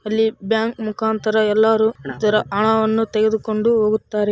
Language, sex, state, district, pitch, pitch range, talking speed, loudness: Kannada, female, Karnataka, Raichur, 220 Hz, 215-220 Hz, 125 wpm, -18 LUFS